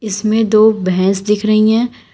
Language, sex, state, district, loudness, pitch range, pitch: Hindi, female, Uttar Pradesh, Shamli, -13 LUFS, 205-220 Hz, 215 Hz